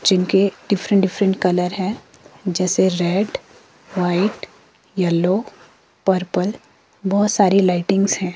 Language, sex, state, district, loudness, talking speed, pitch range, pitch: Hindi, female, Himachal Pradesh, Shimla, -19 LUFS, 95 wpm, 180-200 Hz, 190 Hz